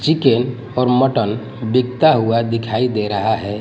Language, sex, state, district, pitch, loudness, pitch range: Hindi, male, Gujarat, Gandhinagar, 115 Hz, -17 LUFS, 110-125 Hz